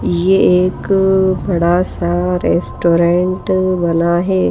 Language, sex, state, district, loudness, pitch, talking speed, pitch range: Hindi, female, Madhya Pradesh, Bhopal, -14 LUFS, 175 Hz, 95 wpm, 165-185 Hz